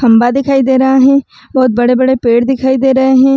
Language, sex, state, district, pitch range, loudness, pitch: Hindi, female, Uttar Pradesh, Varanasi, 250-265 Hz, -10 LUFS, 265 Hz